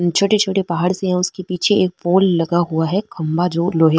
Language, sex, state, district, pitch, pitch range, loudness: Marwari, female, Rajasthan, Nagaur, 180 Hz, 170-190 Hz, -17 LUFS